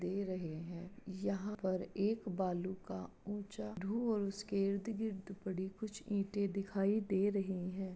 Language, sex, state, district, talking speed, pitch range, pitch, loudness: Hindi, female, Uttar Pradesh, Jalaun, 150 wpm, 185-205 Hz, 195 Hz, -39 LUFS